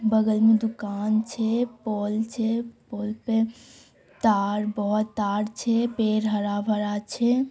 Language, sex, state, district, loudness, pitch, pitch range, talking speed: Maithili, female, Bihar, Samastipur, -25 LUFS, 220 Hz, 210-225 Hz, 130 wpm